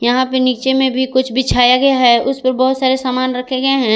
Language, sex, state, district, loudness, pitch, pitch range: Hindi, female, Jharkhand, Garhwa, -14 LUFS, 260 Hz, 255-265 Hz